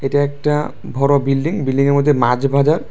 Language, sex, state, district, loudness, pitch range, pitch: Bengali, male, Tripura, West Tripura, -16 LUFS, 135-150 Hz, 140 Hz